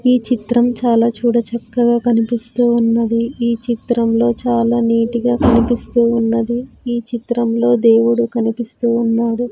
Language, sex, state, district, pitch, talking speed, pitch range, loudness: Telugu, female, Andhra Pradesh, Sri Satya Sai, 235 Hz, 120 wpm, 230-240 Hz, -16 LUFS